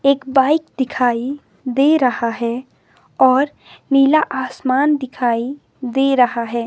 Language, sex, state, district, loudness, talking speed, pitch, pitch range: Hindi, female, Himachal Pradesh, Shimla, -17 LUFS, 115 wpm, 260 Hz, 245-275 Hz